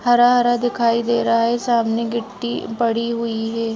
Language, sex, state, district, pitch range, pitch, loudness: Hindi, female, Chhattisgarh, Raigarh, 230-240 Hz, 235 Hz, -19 LUFS